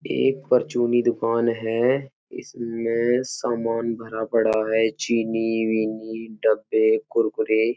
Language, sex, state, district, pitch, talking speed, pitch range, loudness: Hindi, male, Uttar Pradesh, Etah, 115 Hz, 100 wpm, 110-120 Hz, -23 LUFS